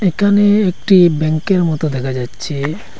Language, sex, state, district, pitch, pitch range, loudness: Bengali, male, Assam, Hailakandi, 170 Hz, 150-195 Hz, -15 LUFS